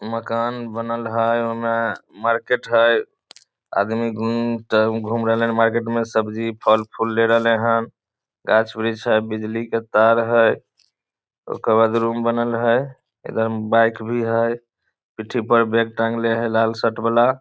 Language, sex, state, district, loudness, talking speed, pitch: Maithili, male, Bihar, Samastipur, -20 LUFS, 105 wpm, 115 Hz